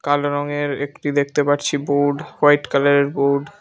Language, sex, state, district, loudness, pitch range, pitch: Bengali, male, Tripura, Unakoti, -19 LUFS, 140-145 Hz, 145 Hz